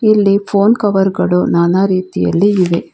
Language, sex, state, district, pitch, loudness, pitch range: Kannada, female, Karnataka, Bangalore, 195 Hz, -13 LUFS, 170-205 Hz